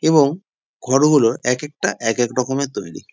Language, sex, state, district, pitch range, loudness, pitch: Bengali, male, West Bengal, Jalpaiguri, 125-150 Hz, -18 LUFS, 140 Hz